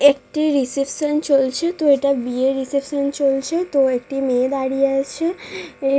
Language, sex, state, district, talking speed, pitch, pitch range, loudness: Bengali, female, West Bengal, Dakshin Dinajpur, 150 wpm, 275 Hz, 270-295 Hz, -19 LUFS